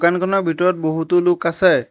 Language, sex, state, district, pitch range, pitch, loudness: Assamese, male, Assam, Hailakandi, 170-185 Hz, 175 Hz, -17 LUFS